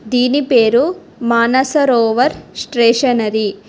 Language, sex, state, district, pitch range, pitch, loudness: Telugu, female, Telangana, Hyderabad, 230-265 Hz, 240 Hz, -14 LUFS